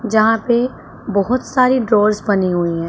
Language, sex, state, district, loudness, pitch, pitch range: Hindi, female, Punjab, Pathankot, -16 LUFS, 220 Hz, 200-245 Hz